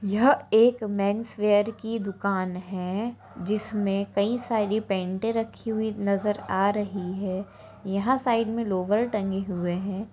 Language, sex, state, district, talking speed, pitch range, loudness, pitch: Hindi, female, Andhra Pradesh, Anantapur, 140 wpm, 195-220 Hz, -26 LUFS, 205 Hz